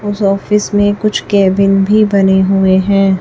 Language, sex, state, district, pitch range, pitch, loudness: Hindi, female, Chhattisgarh, Raipur, 195-205 Hz, 195 Hz, -11 LUFS